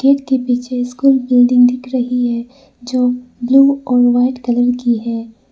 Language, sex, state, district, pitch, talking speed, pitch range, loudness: Hindi, female, Arunachal Pradesh, Lower Dibang Valley, 250 Hz, 165 wpm, 245-260 Hz, -14 LUFS